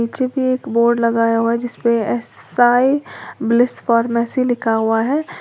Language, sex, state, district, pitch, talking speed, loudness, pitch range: Hindi, female, Uttar Pradesh, Lalitpur, 235 Hz, 165 wpm, -17 LUFS, 230-250 Hz